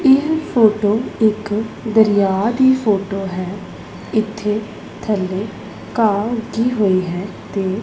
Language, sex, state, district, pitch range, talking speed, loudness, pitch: Punjabi, female, Punjab, Pathankot, 195-225 Hz, 105 wpm, -18 LUFS, 215 Hz